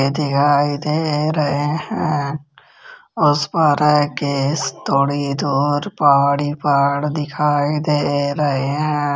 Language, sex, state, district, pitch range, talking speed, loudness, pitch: Hindi, male, Rajasthan, Jaipur, 140-150 Hz, 100 wpm, -18 LUFS, 145 Hz